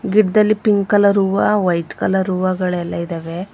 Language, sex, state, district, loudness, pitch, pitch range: Kannada, female, Karnataka, Bangalore, -17 LUFS, 190 Hz, 180-205 Hz